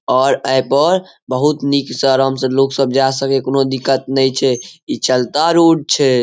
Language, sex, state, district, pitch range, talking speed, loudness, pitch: Maithili, male, Bihar, Saharsa, 130-140 Hz, 200 wpm, -15 LUFS, 135 Hz